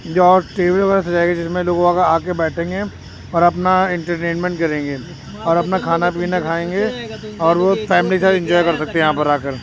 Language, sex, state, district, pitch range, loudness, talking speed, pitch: Hindi, male, Uttar Pradesh, Jyotiba Phule Nagar, 165-185 Hz, -17 LUFS, 180 wpm, 175 Hz